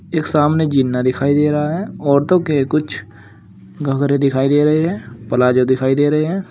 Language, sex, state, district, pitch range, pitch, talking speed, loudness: Hindi, male, Uttar Pradesh, Saharanpur, 130-155 Hz, 140 Hz, 185 wpm, -16 LUFS